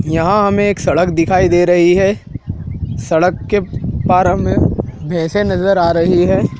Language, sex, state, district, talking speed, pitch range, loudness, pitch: Hindi, male, Madhya Pradesh, Dhar, 155 wpm, 170-195 Hz, -14 LUFS, 180 Hz